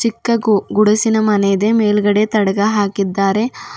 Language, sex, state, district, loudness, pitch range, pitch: Kannada, female, Karnataka, Bidar, -15 LUFS, 205-220 Hz, 210 Hz